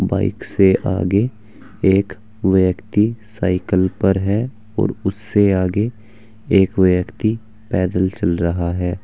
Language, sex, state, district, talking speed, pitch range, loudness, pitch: Hindi, male, Uttar Pradesh, Saharanpur, 115 wpm, 95-110 Hz, -18 LUFS, 100 Hz